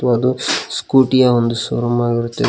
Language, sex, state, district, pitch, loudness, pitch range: Kannada, male, Karnataka, Koppal, 120 Hz, -16 LUFS, 120-130 Hz